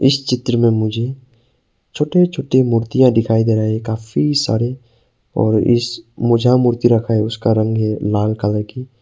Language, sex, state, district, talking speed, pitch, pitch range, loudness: Hindi, male, Arunachal Pradesh, Papum Pare, 175 wpm, 115 Hz, 110-125 Hz, -16 LUFS